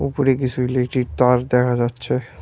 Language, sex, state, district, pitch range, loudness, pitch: Bengali, male, West Bengal, Cooch Behar, 125-130 Hz, -19 LUFS, 125 Hz